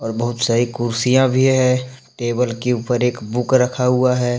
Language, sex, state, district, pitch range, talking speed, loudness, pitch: Hindi, male, Jharkhand, Deoghar, 120-125 Hz, 190 wpm, -18 LUFS, 125 Hz